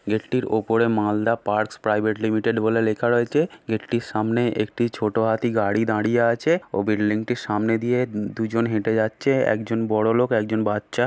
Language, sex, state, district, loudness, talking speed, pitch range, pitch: Bengali, male, West Bengal, Malda, -22 LUFS, 170 wpm, 110-120 Hz, 110 Hz